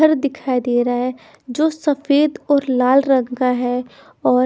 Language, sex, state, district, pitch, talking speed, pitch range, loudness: Hindi, female, Bihar, Patna, 265 Hz, 175 wpm, 250-285 Hz, -18 LUFS